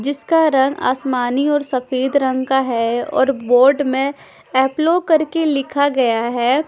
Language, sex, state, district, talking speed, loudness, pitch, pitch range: Hindi, female, Punjab, Fazilka, 145 wpm, -17 LUFS, 270 Hz, 255-290 Hz